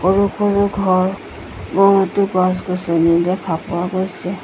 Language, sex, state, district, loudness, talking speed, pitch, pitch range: Assamese, female, Assam, Sonitpur, -17 LUFS, 110 wpm, 185 Hz, 180-195 Hz